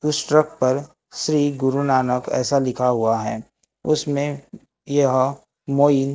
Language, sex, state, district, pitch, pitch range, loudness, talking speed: Hindi, male, Maharashtra, Gondia, 140 Hz, 130-150 Hz, -20 LUFS, 125 wpm